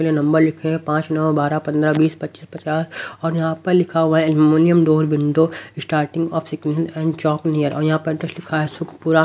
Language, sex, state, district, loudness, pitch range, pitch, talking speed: Hindi, male, Haryana, Rohtak, -18 LUFS, 155-160 Hz, 160 Hz, 220 wpm